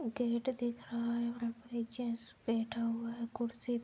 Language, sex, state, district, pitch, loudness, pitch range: Hindi, female, Bihar, Madhepura, 235 Hz, -38 LUFS, 230-240 Hz